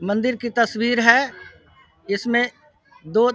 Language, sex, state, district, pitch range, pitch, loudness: Hindi, male, Bihar, Vaishali, 225-245 Hz, 235 Hz, -20 LUFS